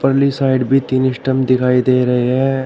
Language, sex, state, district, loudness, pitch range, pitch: Hindi, male, Uttar Pradesh, Shamli, -15 LUFS, 125-135 Hz, 130 Hz